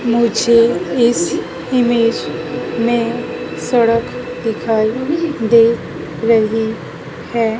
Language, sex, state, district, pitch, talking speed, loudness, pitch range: Hindi, female, Madhya Pradesh, Dhar, 230 Hz, 70 wpm, -16 LUFS, 220-235 Hz